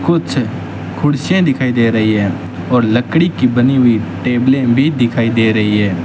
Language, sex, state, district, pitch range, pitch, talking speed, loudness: Hindi, male, Rajasthan, Bikaner, 110-130 Hz, 120 Hz, 170 wpm, -13 LUFS